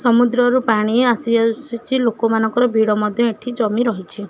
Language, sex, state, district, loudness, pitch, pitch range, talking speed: Odia, female, Odisha, Khordha, -17 LUFS, 230 Hz, 220-245 Hz, 140 wpm